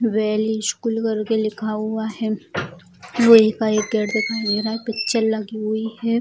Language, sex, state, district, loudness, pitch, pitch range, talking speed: Hindi, female, Bihar, Bhagalpur, -20 LUFS, 220 Hz, 215-225 Hz, 175 wpm